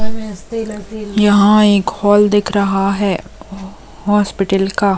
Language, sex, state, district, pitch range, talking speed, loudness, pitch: Hindi, female, Chhattisgarh, Raigarh, 195-210 Hz, 95 wpm, -14 LUFS, 205 Hz